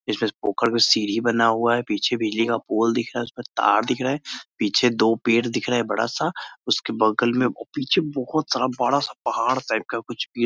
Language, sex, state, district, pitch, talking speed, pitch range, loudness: Hindi, male, Bihar, Muzaffarpur, 120 Hz, 230 wpm, 115-125 Hz, -22 LUFS